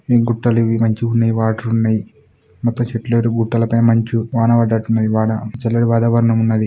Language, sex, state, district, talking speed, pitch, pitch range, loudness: Telugu, male, Telangana, Nalgonda, 170 wpm, 115 Hz, 110-115 Hz, -16 LUFS